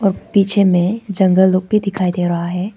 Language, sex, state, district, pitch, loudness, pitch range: Hindi, female, Arunachal Pradesh, Lower Dibang Valley, 190 Hz, -15 LUFS, 180-200 Hz